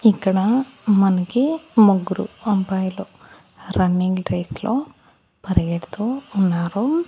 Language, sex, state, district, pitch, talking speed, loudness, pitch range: Telugu, male, Andhra Pradesh, Annamaya, 200 Hz, 75 wpm, -20 LUFS, 185-240 Hz